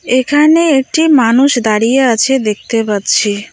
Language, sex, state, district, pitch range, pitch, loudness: Bengali, female, West Bengal, Cooch Behar, 215-275 Hz, 250 Hz, -11 LUFS